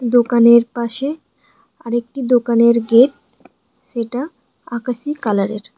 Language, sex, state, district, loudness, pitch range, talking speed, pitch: Bengali, female, West Bengal, Alipurduar, -16 LUFS, 235-255 Hz, 85 wpm, 240 Hz